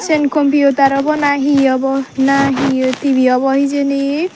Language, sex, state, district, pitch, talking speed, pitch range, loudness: Chakma, female, Tripura, Dhalai, 275 Hz, 140 wpm, 270-285 Hz, -14 LUFS